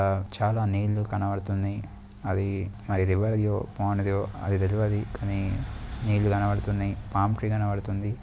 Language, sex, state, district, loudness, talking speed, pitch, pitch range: Telugu, male, Andhra Pradesh, Guntur, -28 LUFS, 75 wpm, 100 Hz, 100-105 Hz